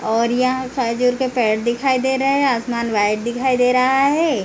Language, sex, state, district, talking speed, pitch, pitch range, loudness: Hindi, female, Jharkhand, Jamtara, 200 wpm, 250 Hz, 235-265 Hz, -18 LUFS